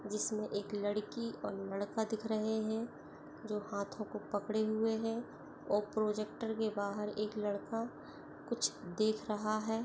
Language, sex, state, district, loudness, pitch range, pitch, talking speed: Hindi, female, Chhattisgarh, Bastar, -38 LUFS, 210-220 Hz, 215 Hz, 140 wpm